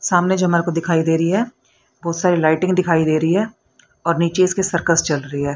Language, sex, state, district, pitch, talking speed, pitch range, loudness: Hindi, female, Haryana, Rohtak, 170 Hz, 235 wpm, 160-185 Hz, -18 LUFS